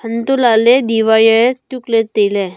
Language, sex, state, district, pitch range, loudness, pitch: Wancho, female, Arunachal Pradesh, Longding, 220-245 Hz, -12 LUFS, 230 Hz